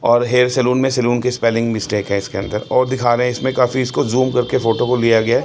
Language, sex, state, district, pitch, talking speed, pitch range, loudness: Hindi, male, Chandigarh, Chandigarh, 125 Hz, 255 wpm, 115-125 Hz, -17 LUFS